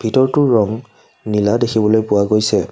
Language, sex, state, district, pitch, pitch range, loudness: Assamese, male, Assam, Kamrup Metropolitan, 110 Hz, 105-120 Hz, -15 LUFS